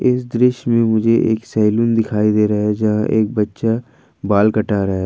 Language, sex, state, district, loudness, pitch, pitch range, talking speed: Hindi, male, Jharkhand, Ranchi, -16 LUFS, 110 Hz, 105-115 Hz, 200 wpm